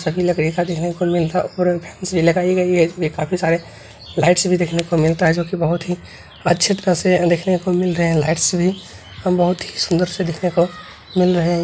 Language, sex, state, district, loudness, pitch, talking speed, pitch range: Hindi, male, Bihar, Begusarai, -18 LUFS, 175 Hz, 205 wpm, 170-180 Hz